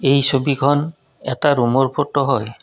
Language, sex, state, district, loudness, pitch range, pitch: Assamese, male, Assam, Kamrup Metropolitan, -17 LUFS, 130-145 Hz, 135 Hz